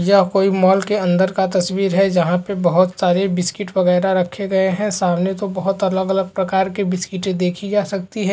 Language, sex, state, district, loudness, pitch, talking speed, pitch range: Hindi, male, Uttar Pradesh, Hamirpur, -18 LUFS, 190 Hz, 200 wpm, 185-195 Hz